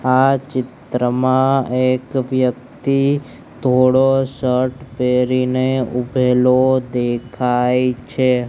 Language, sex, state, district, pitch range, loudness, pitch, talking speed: Gujarati, male, Gujarat, Gandhinagar, 125-130 Hz, -17 LUFS, 130 Hz, 70 wpm